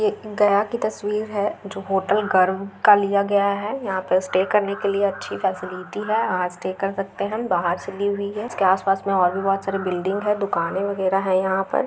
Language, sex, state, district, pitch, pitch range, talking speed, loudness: Hindi, female, Bihar, Gaya, 195 Hz, 185-205 Hz, 215 wpm, -22 LUFS